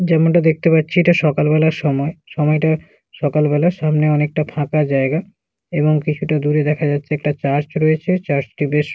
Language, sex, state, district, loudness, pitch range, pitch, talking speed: Bengali, male, West Bengal, Malda, -17 LUFS, 145-160 Hz, 150 Hz, 165 wpm